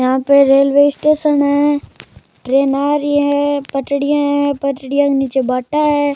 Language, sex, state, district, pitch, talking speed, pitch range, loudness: Rajasthani, male, Rajasthan, Churu, 285 Hz, 155 wpm, 275-290 Hz, -14 LUFS